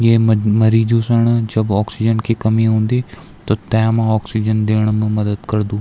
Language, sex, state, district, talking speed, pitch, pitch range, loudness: Garhwali, male, Uttarakhand, Tehri Garhwal, 165 wpm, 110 Hz, 105-115 Hz, -16 LUFS